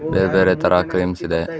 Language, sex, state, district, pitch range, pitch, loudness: Kannada, male, Karnataka, Mysore, 90-95 Hz, 90 Hz, -18 LUFS